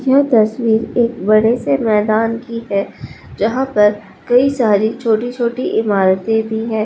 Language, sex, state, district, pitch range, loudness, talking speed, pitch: Hindi, male, Bihar, Supaul, 215-240 Hz, -15 LUFS, 140 wpm, 225 Hz